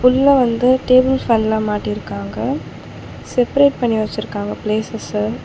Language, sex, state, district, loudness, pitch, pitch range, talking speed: Tamil, female, Tamil Nadu, Chennai, -17 LUFS, 225 Hz, 210-255 Hz, 110 wpm